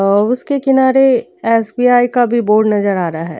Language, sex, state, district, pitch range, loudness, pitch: Hindi, female, Uttar Pradesh, Jyotiba Phule Nagar, 205-255 Hz, -13 LUFS, 235 Hz